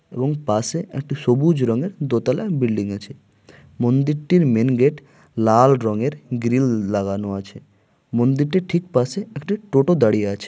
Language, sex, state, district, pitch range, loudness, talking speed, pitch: Bengali, male, West Bengal, Malda, 115-150 Hz, -20 LUFS, 130 wpm, 130 Hz